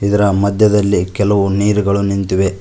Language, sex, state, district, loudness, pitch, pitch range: Kannada, male, Karnataka, Koppal, -14 LUFS, 100 Hz, 100-105 Hz